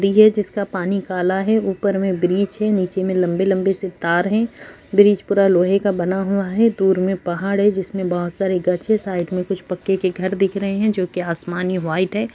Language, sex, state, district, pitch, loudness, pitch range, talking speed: Hindi, female, Uttarakhand, Uttarkashi, 190 Hz, -19 LUFS, 180-200 Hz, 225 wpm